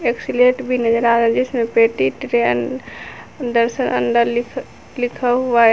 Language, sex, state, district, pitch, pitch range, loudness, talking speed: Hindi, female, Jharkhand, Garhwa, 235 Hz, 230-250 Hz, -17 LUFS, 165 wpm